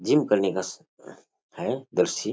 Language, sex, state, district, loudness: Rajasthani, male, Rajasthan, Churu, -26 LUFS